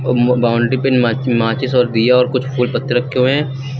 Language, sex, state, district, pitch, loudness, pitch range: Hindi, male, Uttar Pradesh, Lucknow, 125 Hz, -15 LUFS, 120-130 Hz